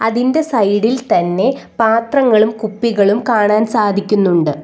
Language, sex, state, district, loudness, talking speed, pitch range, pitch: Malayalam, female, Kerala, Kollam, -14 LUFS, 90 wpm, 205-235 Hz, 220 Hz